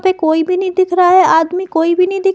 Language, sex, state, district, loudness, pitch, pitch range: Hindi, female, Himachal Pradesh, Shimla, -12 LUFS, 365 Hz, 330-375 Hz